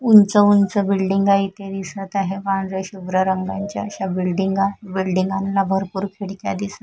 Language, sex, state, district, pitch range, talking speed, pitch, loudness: Marathi, female, Maharashtra, Mumbai Suburban, 190-195 Hz, 130 wpm, 195 Hz, -20 LUFS